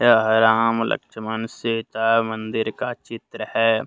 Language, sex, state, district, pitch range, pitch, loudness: Hindi, male, Jharkhand, Deoghar, 110-115 Hz, 110 Hz, -21 LUFS